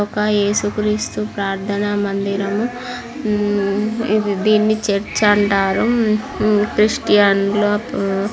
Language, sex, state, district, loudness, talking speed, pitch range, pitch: Telugu, female, Andhra Pradesh, Srikakulam, -17 LUFS, 65 wpm, 200-215 Hz, 210 Hz